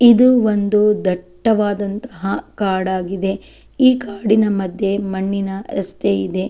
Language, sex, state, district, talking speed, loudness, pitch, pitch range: Kannada, female, Karnataka, Chamarajanagar, 100 wpm, -18 LUFS, 200 Hz, 190-215 Hz